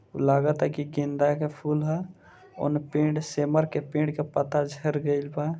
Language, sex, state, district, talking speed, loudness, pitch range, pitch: Bhojpuri, male, Bihar, Gopalganj, 170 wpm, -27 LUFS, 145-150 Hz, 150 Hz